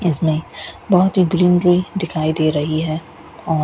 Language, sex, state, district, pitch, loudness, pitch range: Hindi, female, Rajasthan, Bikaner, 165 Hz, -17 LUFS, 155-180 Hz